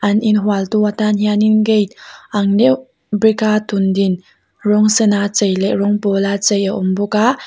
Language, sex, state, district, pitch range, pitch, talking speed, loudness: Mizo, female, Mizoram, Aizawl, 200-215 Hz, 210 Hz, 195 wpm, -15 LUFS